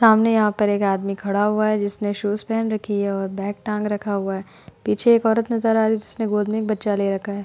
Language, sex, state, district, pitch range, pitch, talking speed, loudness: Hindi, female, Uttar Pradesh, Hamirpur, 200-220 Hz, 210 Hz, 275 wpm, -21 LUFS